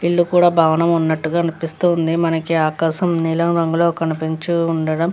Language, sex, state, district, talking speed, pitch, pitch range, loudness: Telugu, female, Andhra Pradesh, Visakhapatnam, 150 wpm, 165 Hz, 160-170 Hz, -17 LUFS